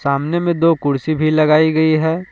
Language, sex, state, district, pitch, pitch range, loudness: Hindi, male, Jharkhand, Palamu, 155 Hz, 155-165 Hz, -15 LUFS